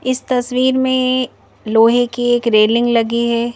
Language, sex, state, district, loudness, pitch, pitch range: Hindi, female, Madhya Pradesh, Bhopal, -15 LUFS, 240 Hz, 235-255 Hz